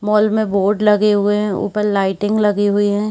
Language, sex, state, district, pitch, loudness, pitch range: Hindi, female, Chhattisgarh, Bilaspur, 210 Hz, -16 LUFS, 205-210 Hz